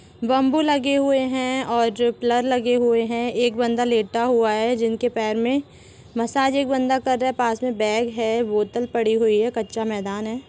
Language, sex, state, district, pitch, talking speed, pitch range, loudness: Hindi, female, Jharkhand, Sahebganj, 240 Hz, 205 wpm, 225-255 Hz, -21 LUFS